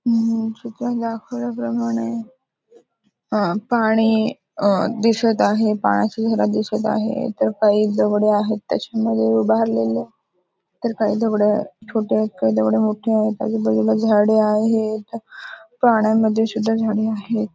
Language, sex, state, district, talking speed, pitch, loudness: Marathi, female, Maharashtra, Aurangabad, 120 wpm, 215 Hz, -19 LUFS